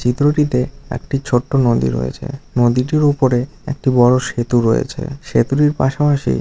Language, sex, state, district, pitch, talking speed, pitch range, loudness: Bengali, male, West Bengal, Dakshin Dinajpur, 130 Hz, 120 wpm, 120-145 Hz, -16 LUFS